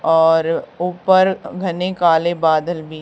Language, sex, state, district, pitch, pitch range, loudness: Hindi, female, Haryana, Charkhi Dadri, 175 Hz, 160-180 Hz, -17 LUFS